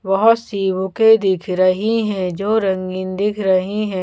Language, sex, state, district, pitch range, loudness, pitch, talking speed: Hindi, female, Bihar, Patna, 185-215 Hz, -17 LUFS, 195 Hz, 165 wpm